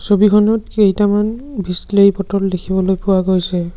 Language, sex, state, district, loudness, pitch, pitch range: Assamese, male, Assam, Sonitpur, -15 LUFS, 200 Hz, 190-210 Hz